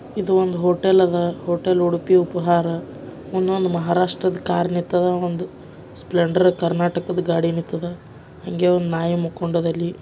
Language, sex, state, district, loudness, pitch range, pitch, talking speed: Kannada, male, Karnataka, Bijapur, -20 LUFS, 170-180 Hz, 175 Hz, 120 wpm